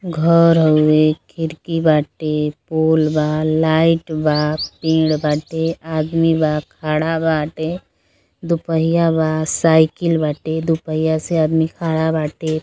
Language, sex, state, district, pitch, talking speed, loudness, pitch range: Bhojpuri, female, Uttar Pradesh, Gorakhpur, 160 Hz, 120 wpm, -17 LUFS, 155-165 Hz